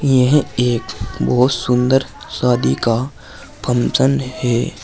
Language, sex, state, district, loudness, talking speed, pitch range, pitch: Hindi, male, Uttar Pradesh, Saharanpur, -17 LUFS, 100 wpm, 120-135 Hz, 125 Hz